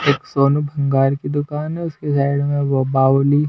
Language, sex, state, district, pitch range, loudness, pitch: Hindi, male, Maharashtra, Washim, 135-145 Hz, -18 LUFS, 140 Hz